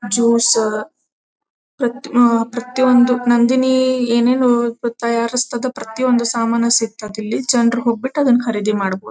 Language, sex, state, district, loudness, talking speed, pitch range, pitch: Kannada, female, Karnataka, Dharwad, -16 LUFS, 90 wpm, 230-250 Hz, 235 Hz